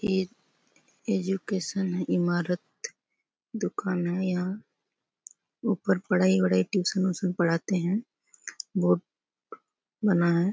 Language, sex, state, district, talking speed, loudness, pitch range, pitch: Hindi, female, Chhattisgarh, Bastar, 95 wpm, -27 LUFS, 180-200 Hz, 185 Hz